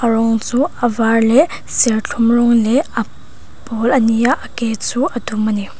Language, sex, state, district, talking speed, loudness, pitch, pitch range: Mizo, female, Mizoram, Aizawl, 205 wpm, -15 LUFS, 230 Hz, 225-245 Hz